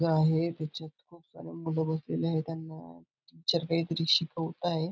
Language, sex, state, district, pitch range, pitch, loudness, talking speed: Marathi, male, Maharashtra, Aurangabad, 160-165 Hz, 160 Hz, -30 LUFS, 160 wpm